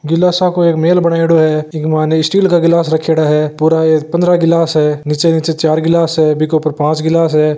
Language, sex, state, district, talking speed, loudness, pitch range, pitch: Marwari, male, Rajasthan, Nagaur, 230 wpm, -12 LUFS, 155-165 Hz, 160 Hz